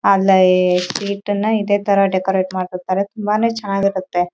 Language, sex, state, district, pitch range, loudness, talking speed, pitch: Kannada, female, Karnataka, Raichur, 185-205 Hz, -17 LUFS, 110 wpm, 195 Hz